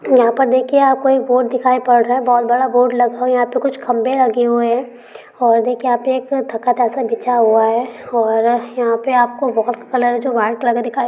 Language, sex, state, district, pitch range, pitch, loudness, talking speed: Hindi, female, Rajasthan, Nagaur, 235-255 Hz, 245 Hz, -15 LUFS, 225 wpm